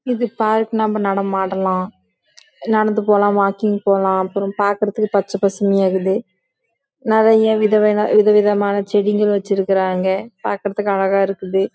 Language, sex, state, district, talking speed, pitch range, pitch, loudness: Tamil, female, Karnataka, Chamarajanagar, 70 wpm, 195-215 Hz, 205 Hz, -17 LUFS